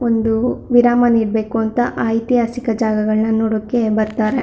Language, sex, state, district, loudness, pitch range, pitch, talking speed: Kannada, female, Karnataka, Shimoga, -16 LUFS, 220-240 Hz, 225 Hz, 110 wpm